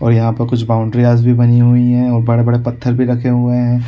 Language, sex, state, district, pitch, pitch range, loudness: Hindi, male, Chhattisgarh, Korba, 120 Hz, 120-125 Hz, -13 LUFS